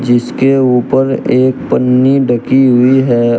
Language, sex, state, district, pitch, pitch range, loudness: Hindi, male, Uttar Pradesh, Shamli, 130 Hz, 120-135 Hz, -10 LUFS